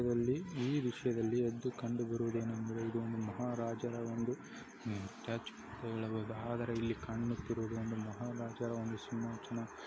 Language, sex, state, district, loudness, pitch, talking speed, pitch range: Kannada, male, Karnataka, Dakshina Kannada, -39 LUFS, 115 Hz, 110 wpm, 115-120 Hz